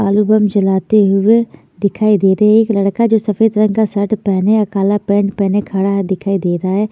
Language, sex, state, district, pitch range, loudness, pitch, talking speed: Hindi, female, Chandigarh, Chandigarh, 195-215 Hz, -13 LUFS, 205 Hz, 235 wpm